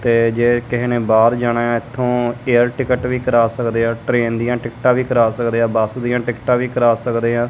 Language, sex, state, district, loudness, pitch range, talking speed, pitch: Punjabi, male, Punjab, Kapurthala, -17 LUFS, 115-125 Hz, 215 wpm, 120 Hz